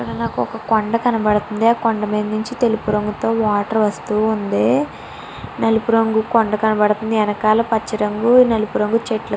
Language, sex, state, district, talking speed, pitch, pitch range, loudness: Telugu, female, Andhra Pradesh, Srikakulam, 165 wpm, 220 Hz, 210-225 Hz, -18 LUFS